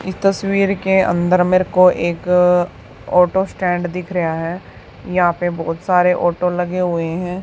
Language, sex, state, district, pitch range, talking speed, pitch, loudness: Hindi, female, Haryana, Charkhi Dadri, 175-185 Hz, 160 wpm, 180 Hz, -17 LUFS